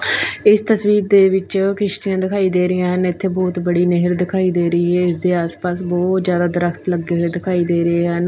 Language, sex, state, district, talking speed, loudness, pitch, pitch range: Punjabi, female, Punjab, Fazilka, 215 wpm, -17 LUFS, 180 Hz, 175-190 Hz